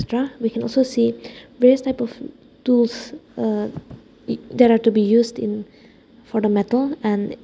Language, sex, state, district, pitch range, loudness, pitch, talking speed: English, female, Nagaland, Dimapur, 225-260 Hz, -20 LUFS, 240 Hz, 155 wpm